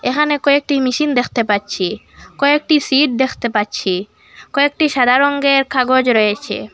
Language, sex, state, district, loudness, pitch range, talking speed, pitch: Bengali, female, Assam, Hailakandi, -15 LUFS, 235-285 Hz, 125 wpm, 265 Hz